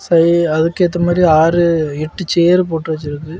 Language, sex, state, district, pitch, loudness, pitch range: Tamil, male, Tamil Nadu, Kanyakumari, 170 Hz, -14 LUFS, 160-175 Hz